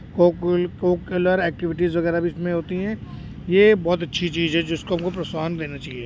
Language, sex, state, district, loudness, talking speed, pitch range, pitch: Hindi, male, Uttar Pradesh, Jyotiba Phule Nagar, -22 LUFS, 180 wpm, 170-180 Hz, 175 Hz